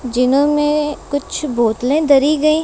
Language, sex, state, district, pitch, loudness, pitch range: Hindi, female, Punjab, Kapurthala, 285 Hz, -15 LUFS, 260-300 Hz